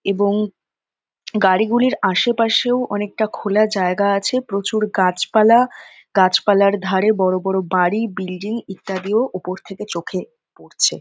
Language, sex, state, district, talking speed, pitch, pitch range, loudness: Bengali, female, West Bengal, North 24 Parganas, 115 wpm, 200 Hz, 190-225 Hz, -18 LUFS